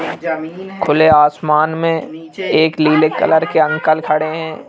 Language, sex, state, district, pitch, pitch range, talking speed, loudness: Hindi, male, Madhya Pradesh, Bhopal, 155 Hz, 155-160 Hz, 130 wpm, -14 LUFS